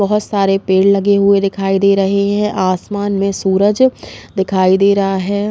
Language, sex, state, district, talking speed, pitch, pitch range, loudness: Hindi, female, Uttar Pradesh, Muzaffarnagar, 175 wpm, 200 Hz, 195-200 Hz, -14 LUFS